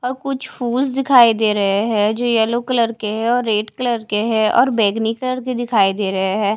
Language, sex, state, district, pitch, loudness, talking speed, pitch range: Hindi, female, Haryana, Charkhi Dadri, 230 Hz, -17 LUFS, 230 wpm, 210-245 Hz